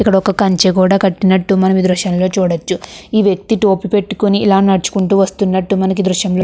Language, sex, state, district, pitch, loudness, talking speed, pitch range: Telugu, female, Andhra Pradesh, Krishna, 195 Hz, -13 LUFS, 185 wpm, 185-200 Hz